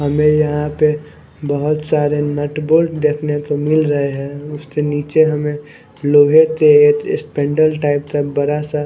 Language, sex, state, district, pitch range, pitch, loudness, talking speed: Hindi, male, Chandigarh, Chandigarh, 145-150 Hz, 150 Hz, -15 LUFS, 140 wpm